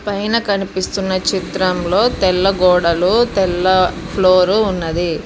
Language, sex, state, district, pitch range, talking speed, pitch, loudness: Telugu, female, Telangana, Mahabubabad, 180-195 Hz, 90 wpm, 185 Hz, -15 LUFS